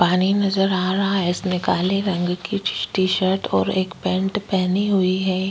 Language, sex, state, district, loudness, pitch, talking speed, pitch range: Hindi, female, Uttar Pradesh, Jyotiba Phule Nagar, -21 LUFS, 190 Hz, 175 wpm, 185-195 Hz